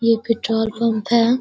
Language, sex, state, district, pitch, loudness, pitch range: Hindi, female, Bihar, Darbhanga, 230 Hz, -19 LUFS, 225-235 Hz